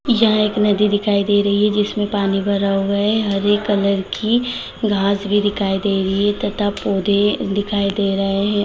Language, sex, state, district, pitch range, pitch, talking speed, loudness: Hindi, female, Bihar, Sitamarhi, 200-210 Hz, 205 Hz, 195 wpm, -18 LUFS